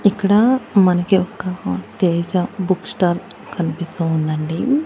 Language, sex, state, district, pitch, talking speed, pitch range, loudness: Telugu, female, Andhra Pradesh, Annamaya, 180 Hz, 100 wpm, 170-200 Hz, -18 LUFS